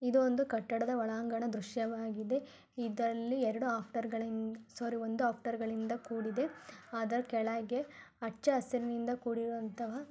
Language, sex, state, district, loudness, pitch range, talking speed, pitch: Kannada, female, Karnataka, Gulbarga, -37 LUFS, 225-245 Hz, 105 wpm, 230 Hz